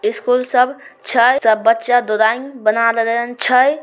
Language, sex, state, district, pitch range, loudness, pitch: Maithili, male, Bihar, Samastipur, 230-255 Hz, -15 LUFS, 245 Hz